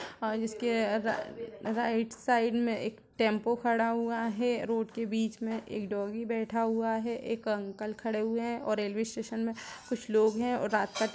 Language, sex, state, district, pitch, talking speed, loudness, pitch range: Hindi, female, Chhattisgarh, Raigarh, 225 Hz, 195 wpm, -32 LUFS, 220-230 Hz